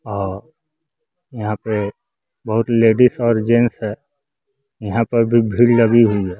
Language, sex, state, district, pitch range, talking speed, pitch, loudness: Hindi, male, Bihar, West Champaran, 110-135 Hz, 140 wpm, 115 Hz, -16 LUFS